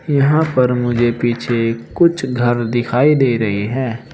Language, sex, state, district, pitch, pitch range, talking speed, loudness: Hindi, male, Uttar Pradesh, Saharanpur, 120 Hz, 120-135 Hz, 145 wpm, -16 LUFS